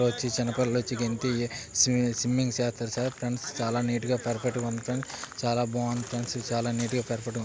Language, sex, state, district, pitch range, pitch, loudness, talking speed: Telugu, male, Andhra Pradesh, Chittoor, 120-125 Hz, 120 Hz, -29 LUFS, 160 wpm